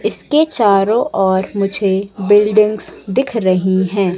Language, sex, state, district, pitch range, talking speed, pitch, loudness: Hindi, female, Madhya Pradesh, Katni, 190-215 Hz, 115 wpm, 200 Hz, -14 LUFS